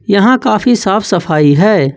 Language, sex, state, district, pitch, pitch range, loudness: Hindi, male, Jharkhand, Ranchi, 200 Hz, 160-220 Hz, -10 LUFS